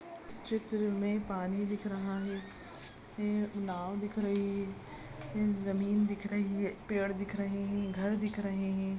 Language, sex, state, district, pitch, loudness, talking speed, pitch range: Hindi, female, Goa, North and South Goa, 200 Hz, -35 LUFS, 165 wpm, 195-210 Hz